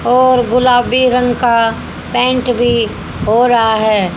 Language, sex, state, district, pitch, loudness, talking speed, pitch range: Hindi, female, Haryana, Rohtak, 245 Hz, -12 LUFS, 130 wpm, 230-250 Hz